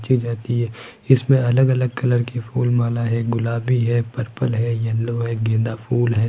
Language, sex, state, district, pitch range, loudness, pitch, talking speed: Hindi, male, Rajasthan, Jaipur, 115-125 Hz, -20 LUFS, 120 Hz, 190 wpm